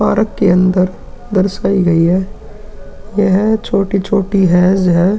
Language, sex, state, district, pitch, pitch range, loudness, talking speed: Hindi, male, Uttar Pradesh, Hamirpur, 190 Hz, 185-205 Hz, -13 LUFS, 115 wpm